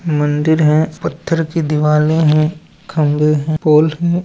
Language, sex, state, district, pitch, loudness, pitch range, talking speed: Hindi, male, Andhra Pradesh, Chittoor, 155 Hz, -14 LUFS, 150-165 Hz, 140 wpm